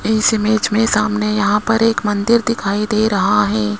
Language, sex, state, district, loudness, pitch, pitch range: Hindi, male, Rajasthan, Jaipur, -15 LUFS, 210 Hz, 205-220 Hz